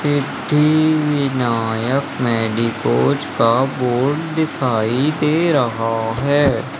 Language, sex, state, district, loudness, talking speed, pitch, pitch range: Hindi, male, Madhya Pradesh, Umaria, -17 LUFS, 70 wpm, 130 Hz, 115-150 Hz